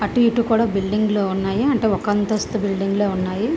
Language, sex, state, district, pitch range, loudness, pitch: Telugu, female, Andhra Pradesh, Visakhapatnam, 195-225 Hz, -20 LUFS, 210 Hz